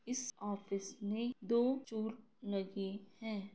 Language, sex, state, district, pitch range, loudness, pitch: Hindi, female, Bihar, Kishanganj, 200-235 Hz, -40 LUFS, 220 Hz